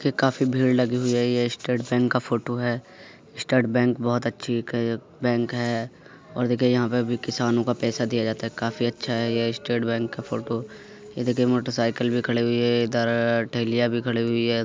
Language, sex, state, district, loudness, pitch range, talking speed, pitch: Hindi, male, Uttar Pradesh, Muzaffarnagar, -24 LUFS, 115-125 Hz, 230 wpm, 120 Hz